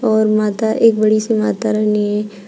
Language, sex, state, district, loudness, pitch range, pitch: Hindi, female, Uttar Pradesh, Shamli, -15 LUFS, 210-220 Hz, 215 Hz